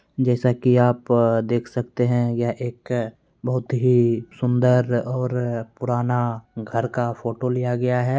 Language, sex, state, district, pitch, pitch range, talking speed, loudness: Hindi, male, Bihar, Begusarai, 120 Hz, 120-125 Hz, 140 wpm, -22 LUFS